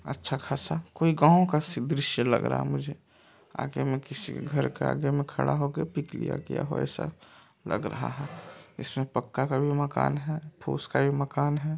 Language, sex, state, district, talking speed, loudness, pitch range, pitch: Maithili, male, Bihar, Supaul, 200 wpm, -29 LUFS, 135-150 Hz, 145 Hz